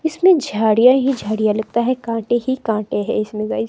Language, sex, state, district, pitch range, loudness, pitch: Hindi, female, Himachal Pradesh, Shimla, 215-260 Hz, -17 LUFS, 230 Hz